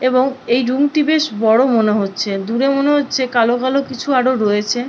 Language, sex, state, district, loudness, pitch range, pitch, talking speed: Bengali, female, West Bengal, Purulia, -16 LUFS, 225-270 Hz, 255 Hz, 195 wpm